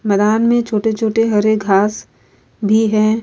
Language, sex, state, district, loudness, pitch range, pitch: Hindi, female, Bihar, Vaishali, -15 LUFS, 210-225 Hz, 215 Hz